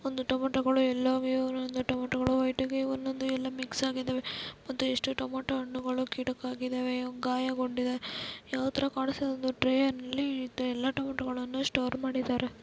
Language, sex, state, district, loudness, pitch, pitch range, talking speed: Kannada, female, Karnataka, Belgaum, -32 LUFS, 260 Hz, 255-265 Hz, 125 wpm